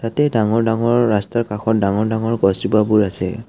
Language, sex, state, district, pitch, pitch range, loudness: Assamese, male, Assam, Kamrup Metropolitan, 110 Hz, 105-115 Hz, -17 LUFS